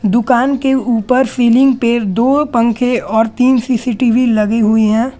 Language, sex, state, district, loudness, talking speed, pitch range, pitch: Hindi, male, Jharkhand, Garhwa, -13 LUFS, 150 wpm, 225-255 Hz, 240 Hz